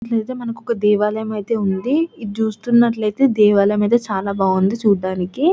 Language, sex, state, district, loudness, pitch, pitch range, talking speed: Telugu, female, Telangana, Nalgonda, -18 LUFS, 215 Hz, 205-235 Hz, 150 wpm